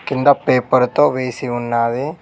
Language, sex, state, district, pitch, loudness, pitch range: Telugu, male, Telangana, Mahabubabad, 130 Hz, -16 LUFS, 120-130 Hz